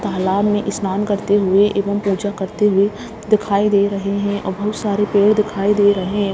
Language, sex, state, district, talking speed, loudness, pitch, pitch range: Hindi, female, Bihar, Gaya, 200 wpm, -17 LUFS, 205 Hz, 200-205 Hz